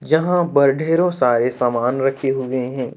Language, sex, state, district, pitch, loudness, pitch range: Hindi, male, Jharkhand, Ranchi, 135 Hz, -18 LUFS, 125-160 Hz